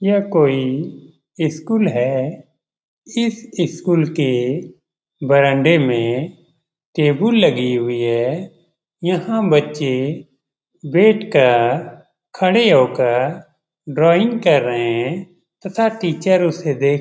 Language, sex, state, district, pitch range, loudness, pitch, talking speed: Hindi, male, Bihar, Jamui, 135-175 Hz, -17 LUFS, 160 Hz, 100 wpm